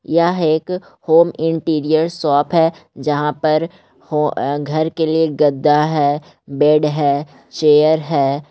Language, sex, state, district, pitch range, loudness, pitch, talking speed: Magahi, male, Bihar, Gaya, 150-160 Hz, -16 LUFS, 155 Hz, 135 wpm